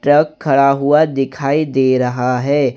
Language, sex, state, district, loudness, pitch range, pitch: Hindi, male, Jharkhand, Garhwa, -15 LUFS, 130-145 Hz, 140 Hz